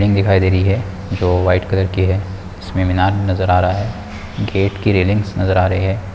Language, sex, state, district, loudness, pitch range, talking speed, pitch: Hindi, male, Bihar, Muzaffarpur, -16 LUFS, 95-100 Hz, 225 wpm, 95 Hz